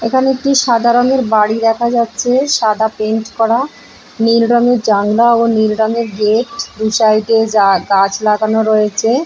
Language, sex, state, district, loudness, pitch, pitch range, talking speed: Bengali, female, West Bengal, Purulia, -13 LUFS, 225 Hz, 215-240 Hz, 170 wpm